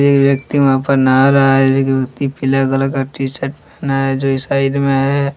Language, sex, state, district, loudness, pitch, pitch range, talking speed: Hindi, male, Jharkhand, Deoghar, -14 LUFS, 135 Hz, 135-140 Hz, 225 wpm